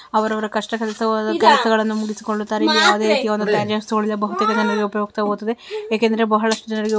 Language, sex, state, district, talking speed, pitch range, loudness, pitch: Kannada, female, Karnataka, Belgaum, 145 wpm, 210-225 Hz, -19 LUFS, 215 Hz